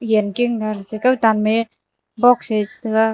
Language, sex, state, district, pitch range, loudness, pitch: Wancho, female, Arunachal Pradesh, Longding, 215-235 Hz, -18 LUFS, 220 Hz